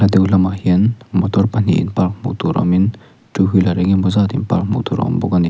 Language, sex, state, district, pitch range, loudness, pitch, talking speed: Mizo, male, Mizoram, Aizawl, 95-110 Hz, -16 LUFS, 95 Hz, 250 wpm